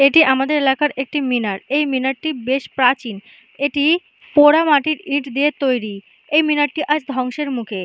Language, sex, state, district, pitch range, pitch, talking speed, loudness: Bengali, female, West Bengal, Malda, 255-295 Hz, 275 Hz, 160 wpm, -17 LUFS